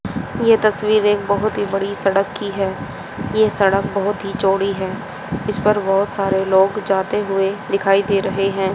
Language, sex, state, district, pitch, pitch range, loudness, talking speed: Hindi, female, Haryana, Jhajjar, 195 Hz, 195-205 Hz, -18 LUFS, 170 wpm